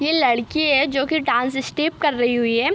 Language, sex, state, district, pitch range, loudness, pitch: Hindi, female, Uttar Pradesh, Hamirpur, 240-305 Hz, -19 LUFS, 275 Hz